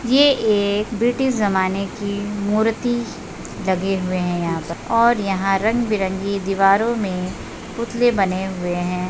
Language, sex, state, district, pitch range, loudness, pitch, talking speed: Hindi, female, Bihar, Saharsa, 190-230 Hz, -20 LUFS, 200 Hz, 130 wpm